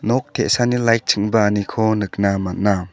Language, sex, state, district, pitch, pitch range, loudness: Garo, male, Meghalaya, South Garo Hills, 105 Hz, 100-115 Hz, -18 LUFS